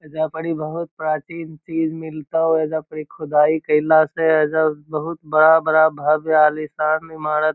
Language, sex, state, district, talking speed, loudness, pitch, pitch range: Magahi, male, Bihar, Lakhisarai, 160 wpm, -19 LUFS, 155 Hz, 155-160 Hz